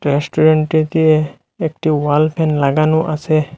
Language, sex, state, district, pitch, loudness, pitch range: Bengali, male, Assam, Hailakandi, 155 Hz, -15 LUFS, 150-160 Hz